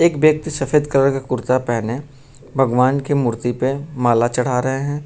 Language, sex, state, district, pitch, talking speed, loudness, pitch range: Hindi, male, Uttar Pradesh, Lucknow, 135 Hz, 180 wpm, -18 LUFS, 125-145 Hz